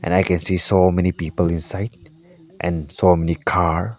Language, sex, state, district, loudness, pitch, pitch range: English, male, Arunachal Pradesh, Lower Dibang Valley, -19 LUFS, 90 Hz, 85-100 Hz